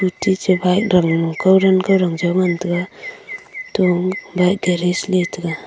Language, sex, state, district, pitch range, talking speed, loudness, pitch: Wancho, female, Arunachal Pradesh, Longding, 180-190 Hz, 125 wpm, -17 LUFS, 185 Hz